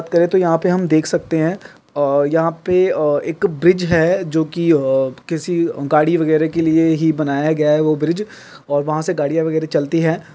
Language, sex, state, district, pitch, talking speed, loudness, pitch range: Hindi, male, Andhra Pradesh, Guntur, 160 Hz, 205 wpm, -17 LUFS, 155-170 Hz